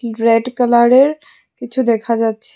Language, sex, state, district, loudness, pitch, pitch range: Bengali, female, Assam, Hailakandi, -14 LUFS, 240 Hz, 230-255 Hz